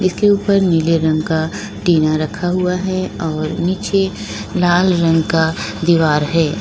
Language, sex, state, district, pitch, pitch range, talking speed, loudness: Hindi, female, Uttar Pradesh, Lalitpur, 165 Hz, 160-185 Hz, 155 wpm, -16 LUFS